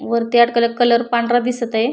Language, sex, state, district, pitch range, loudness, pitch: Marathi, female, Maharashtra, Pune, 235-245 Hz, -16 LUFS, 235 Hz